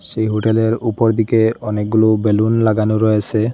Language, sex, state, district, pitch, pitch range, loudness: Bengali, male, Assam, Hailakandi, 110 Hz, 110-115 Hz, -15 LUFS